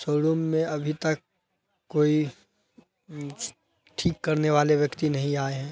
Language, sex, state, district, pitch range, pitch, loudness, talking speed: Hindi, male, Bihar, Araria, 145-165 Hz, 155 Hz, -26 LUFS, 135 wpm